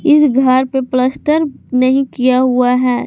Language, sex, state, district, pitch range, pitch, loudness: Hindi, female, Jharkhand, Garhwa, 255-270 Hz, 255 Hz, -13 LUFS